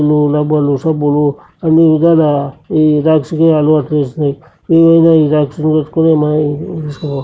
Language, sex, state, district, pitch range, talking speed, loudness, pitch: Telugu, male, Andhra Pradesh, Srikakulam, 150-160 Hz, 135 wpm, -12 LUFS, 155 Hz